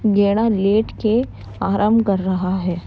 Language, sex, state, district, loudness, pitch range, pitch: Hindi, female, Uttar Pradesh, Jalaun, -18 LUFS, 190-220 Hz, 205 Hz